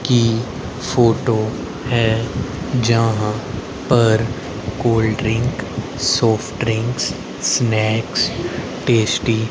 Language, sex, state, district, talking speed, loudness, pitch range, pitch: Hindi, male, Haryana, Rohtak, 75 wpm, -18 LUFS, 110-120 Hz, 115 Hz